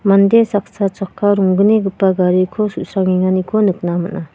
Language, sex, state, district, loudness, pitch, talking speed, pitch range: Garo, female, Meghalaya, West Garo Hills, -15 LUFS, 195 Hz, 110 wpm, 185-205 Hz